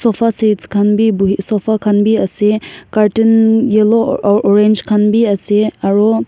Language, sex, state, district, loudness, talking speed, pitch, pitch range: Nagamese, female, Nagaland, Kohima, -12 LUFS, 160 wpm, 215 Hz, 205-220 Hz